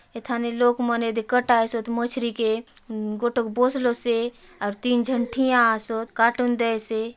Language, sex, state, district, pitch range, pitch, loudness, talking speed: Halbi, female, Chhattisgarh, Bastar, 225-245 Hz, 235 Hz, -23 LUFS, 165 wpm